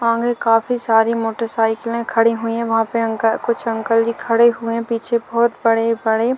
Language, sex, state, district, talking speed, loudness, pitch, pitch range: Hindi, female, Chhattisgarh, Korba, 200 wpm, -18 LUFS, 230 Hz, 225-235 Hz